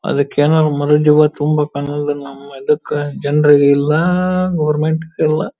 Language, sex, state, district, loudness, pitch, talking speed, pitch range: Kannada, female, Karnataka, Belgaum, -15 LUFS, 150 Hz, 105 wpm, 145-155 Hz